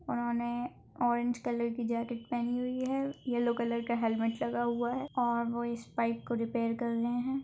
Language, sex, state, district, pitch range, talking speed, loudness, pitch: Hindi, female, Maharashtra, Aurangabad, 235-245 Hz, 195 wpm, -33 LUFS, 240 Hz